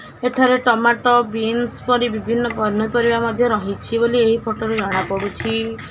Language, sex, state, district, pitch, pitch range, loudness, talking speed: Odia, female, Odisha, Khordha, 230 Hz, 215-240 Hz, -18 LUFS, 120 wpm